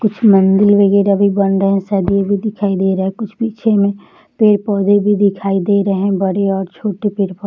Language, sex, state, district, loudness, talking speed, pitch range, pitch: Hindi, female, Bihar, Saharsa, -14 LUFS, 265 wpm, 195-205 Hz, 200 Hz